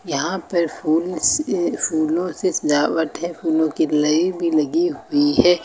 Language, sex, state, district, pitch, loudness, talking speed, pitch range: Hindi, female, Uttar Pradesh, Lucknow, 170 Hz, -20 LUFS, 150 wpm, 160-185 Hz